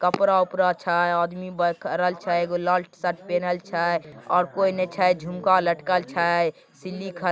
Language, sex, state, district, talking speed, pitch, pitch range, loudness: Maithili, male, Bihar, Begusarai, 165 wpm, 180 Hz, 175-185 Hz, -23 LUFS